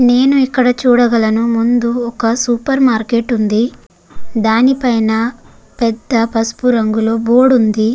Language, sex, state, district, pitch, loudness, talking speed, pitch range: Telugu, female, Andhra Pradesh, Guntur, 235 Hz, -13 LUFS, 105 wpm, 225-250 Hz